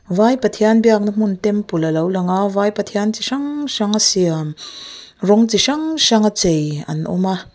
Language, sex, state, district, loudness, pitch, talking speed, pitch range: Mizo, female, Mizoram, Aizawl, -16 LUFS, 210 Hz, 200 wpm, 185-220 Hz